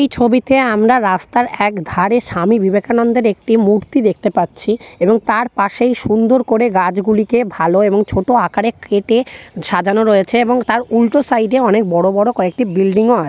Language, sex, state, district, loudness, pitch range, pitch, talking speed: Bengali, female, West Bengal, North 24 Parganas, -14 LUFS, 200-240 Hz, 220 Hz, 160 wpm